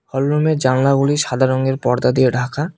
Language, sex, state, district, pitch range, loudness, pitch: Bengali, male, West Bengal, Cooch Behar, 130-145 Hz, -16 LUFS, 135 Hz